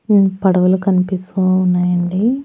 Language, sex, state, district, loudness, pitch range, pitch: Telugu, female, Andhra Pradesh, Annamaya, -15 LUFS, 180-195 Hz, 185 Hz